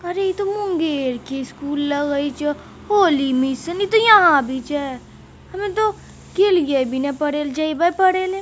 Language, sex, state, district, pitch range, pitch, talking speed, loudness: Magahi, female, Bihar, Jamui, 280-380 Hz, 300 Hz, 170 wpm, -19 LUFS